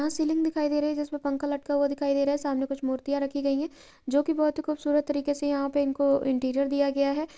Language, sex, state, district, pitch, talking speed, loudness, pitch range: Maithili, female, Bihar, Purnia, 285 Hz, 275 wpm, -27 LUFS, 280-295 Hz